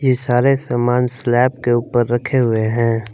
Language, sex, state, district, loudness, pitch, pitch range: Hindi, male, Jharkhand, Palamu, -17 LUFS, 120 Hz, 120-125 Hz